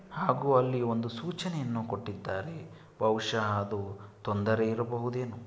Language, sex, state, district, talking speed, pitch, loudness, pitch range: Kannada, male, Karnataka, Shimoga, 110 wpm, 115 Hz, -31 LUFS, 105-125 Hz